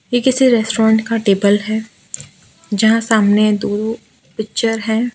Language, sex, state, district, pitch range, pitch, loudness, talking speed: Hindi, female, Gujarat, Valsad, 210-230 Hz, 220 Hz, -15 LUFS, 130 wpm